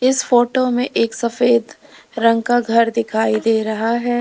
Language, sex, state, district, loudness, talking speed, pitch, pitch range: Hindi, female, Uttar Pradesh, Lalitpur, -17 LUFS, 170 wpm, 230 Hz, 225-245 Hz